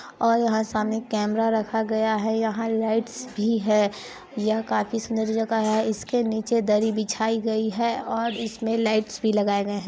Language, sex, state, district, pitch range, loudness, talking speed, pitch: Hindi, female, Chhattisgarh, Sarguja, 215-225 Hz, -24 LUFS, 180 wpm, 220 Hz